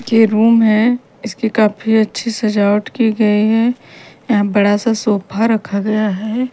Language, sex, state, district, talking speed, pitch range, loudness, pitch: Hindi, female, Haryana, Rohtak, 155 wpm, 210-230 Hz, -15 LUFS, 220 Hz